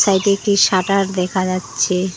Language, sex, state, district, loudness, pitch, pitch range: Bengali, female, West Bengal, Cooch Behar, -17 LUFS, 190 Hz, 185-200 Hz